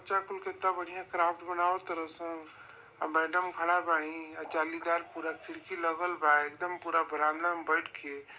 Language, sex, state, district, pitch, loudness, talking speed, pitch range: Bhojpuri, male, Uttar Pradesh, Varanasi, 170 Hz, -32 LUFS, 155 wpm, 160-180 Hz